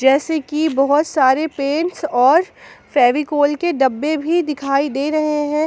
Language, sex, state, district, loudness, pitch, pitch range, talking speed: Hindi, female, Jharkhand, Palamu, -17 LUFS, 295 Hz, 275-315 Hz, 150 wpm